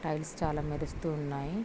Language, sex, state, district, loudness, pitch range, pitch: Telugu, female, Andhra Pradesh, Krishna, -35 LUFS, 150-160 Hz, 155 Hz